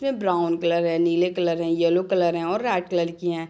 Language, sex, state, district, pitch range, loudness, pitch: Hindi, female, Bihar, Sitamarhi, 170-180 Hz, -23 LUFS, 170 Hz